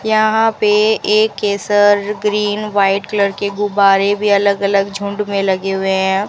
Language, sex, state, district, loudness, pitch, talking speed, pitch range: Hindi, female, Rajasthan, Bikaner, -15 LUFS, 205 Hz, 170 wpm, 200-210 Hz